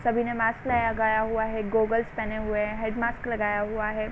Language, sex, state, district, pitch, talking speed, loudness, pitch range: Hindi, female, Uttar Pradesh, Varanasi, 220 Hz, 220 wpm, -27 LUFS, 215-230 Hz